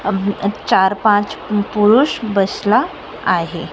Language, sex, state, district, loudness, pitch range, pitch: Marathi, female, Maharashtra, Sindhudurg, -16 LUFS, 195-215 Hz, 205 Hz